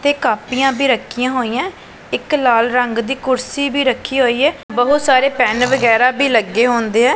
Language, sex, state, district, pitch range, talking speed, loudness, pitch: Punjabi, female, Punjab, Pathankot, 240-270 Hz, 175 wpm, -15 LUFS, 255 Hz